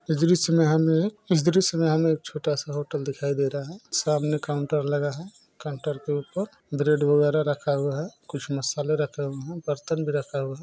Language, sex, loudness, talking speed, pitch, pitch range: Maithili, female, -25 LUFS, 210 wpm, 150 Hz, 145-160 Hz